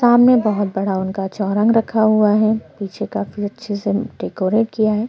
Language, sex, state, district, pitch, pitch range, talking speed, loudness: Hindi, female, Chhattisgarh, Korba, 215 Hz, 200-220 Hz, 175 wpm, -18 LUFS